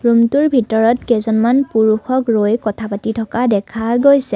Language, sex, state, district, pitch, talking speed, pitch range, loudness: Assamese, female, Assam, Kamrup Metropolitan, 230 Hz, 140 wpm, 220-245 Hz, -15 LUFS